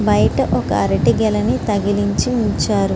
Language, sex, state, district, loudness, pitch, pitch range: Telugu, female, Andhra Pradesh, Srikakulam, -17 LUFS, 205 Hz, 200-215 Hz